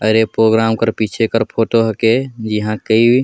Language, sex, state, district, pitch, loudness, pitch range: Sadri, male, Chhattisgarh, Jashpur, 110 Hz, -15 LUFS, 110-115 Hz